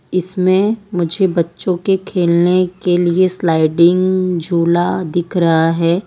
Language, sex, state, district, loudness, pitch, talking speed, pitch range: Hindi, female, Gujarat, Valsad, -15 LUFS, 175 Hz, 120 wpm, 170-185 Hz